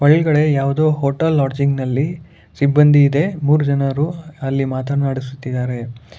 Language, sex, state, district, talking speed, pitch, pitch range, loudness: Kannada, male, Karnataka, Bangalore, 105 wpm, 140 Hz, 135-150 Hz, -17 LUFS